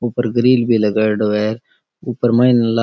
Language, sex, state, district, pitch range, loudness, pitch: Rajasthani, male, Rajasthan, Nagaur, 110-120 Hz, -15 LUFS, 115 Hz